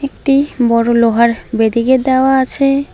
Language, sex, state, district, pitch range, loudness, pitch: Bengali, female, West Bengal, Alipurduar, 235-275 Hz, -13 LUFS, 260 Hz